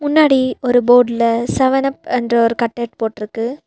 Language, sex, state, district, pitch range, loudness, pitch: Tamil, female, Tamil Nadu, Nilgiris, 230-265 Hz, -15 LUFS, 245 Hz